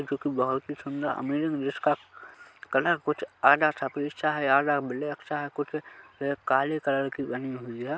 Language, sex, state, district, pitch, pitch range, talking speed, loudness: Hindi, male, Chhattisgarh, Kabirdham, 140 Hz, 135-150 Hz, 175 wpm, -28 LUFS